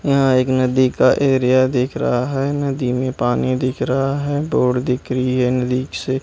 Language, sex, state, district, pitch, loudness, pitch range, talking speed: Hindi, male, Maharashtra, Gondia, 130 Hz, -18 LUFS, 125-135 Hz, 195 wpm